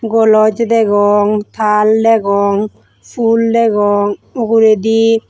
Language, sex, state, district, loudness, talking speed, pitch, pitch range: Chakma, female, Tripura, West Tripura, -12 LUFS, 80 wpm, 220 Hz, 205-225 Hz